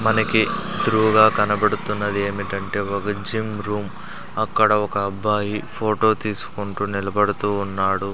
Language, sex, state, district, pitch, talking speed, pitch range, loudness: Telugu, male, Andhra Pradesh, Sri Satya Sai, 105 Hz, 95 wpm, 100-105 Hz, -21 LUFS